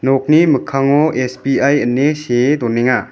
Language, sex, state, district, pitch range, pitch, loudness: Garo, male, Meghalaya, West Garo Hills, 125-150 Hz, 135 Hz, -14 LUFS